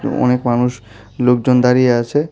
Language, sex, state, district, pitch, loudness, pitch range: Bengali, male, Tripura, West Tripura, 125 Hz, -15 LUFS, 120-125 Hz